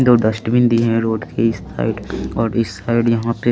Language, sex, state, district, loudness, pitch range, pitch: Hindi, male, Chandigarh, Chandigarh, -18 LUFS, 110-115 Hz, 115 Hz